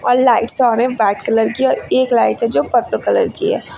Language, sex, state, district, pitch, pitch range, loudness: Hindi, female, Uttar Pradesh, Lucknow, 240 Hz, 225-250 Hz, -15 LUFS